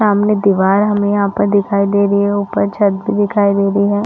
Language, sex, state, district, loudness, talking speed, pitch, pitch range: Hindi, female, Chhattisgarh, Rajnandgaon, -14 LUFS, 220 wpm, 200 Hz, 200-205 Hz